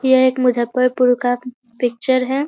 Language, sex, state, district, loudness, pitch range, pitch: Hindi, female, Bihar, Muzaffarpur, -17 LUFS, 245-260 Hz, 250 Hz